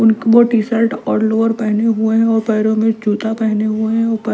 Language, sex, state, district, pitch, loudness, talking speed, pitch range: Hindi, female, Delhi, New Delhi, 220 Hz, -15 LUFS, 205 wpm, 220-225 Hz